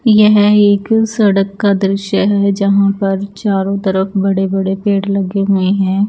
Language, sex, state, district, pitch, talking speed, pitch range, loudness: Hindi, female, Chandigarh, Chandigarh, 200 Hz, 155 wpm, 195-205 Hz, -13 LUFS